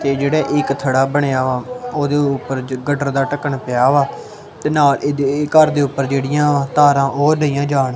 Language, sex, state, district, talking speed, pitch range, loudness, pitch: Punjabi, male, Punjab, Kapurthala, 180 wpm, 135-145 Hz, -16 LUFS, 140 Hz